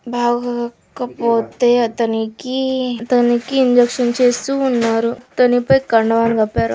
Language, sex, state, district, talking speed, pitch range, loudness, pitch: Telugu, female, Andhra Pradesh, Krishna, 45 wpm, 230-250 Hz, -16 LUFS, 240 Hz